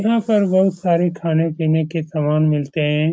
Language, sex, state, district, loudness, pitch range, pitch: Hindi, male, Bihar, Supaul, -18 LUFS, 155-185 Hz, 165 Hz